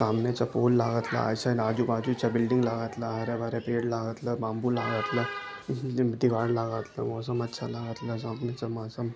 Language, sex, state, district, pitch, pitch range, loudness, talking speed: Marathi, male, Maharashtra, Sindhudurg, 115 Hz, 115-120 Hz, -29 LUFS, 150 wpm